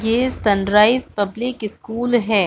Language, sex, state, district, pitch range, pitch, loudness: Hindi, female, Chhattisgarh, Balrampur, 205-240 Hz, 225 Hz, -18 LUFS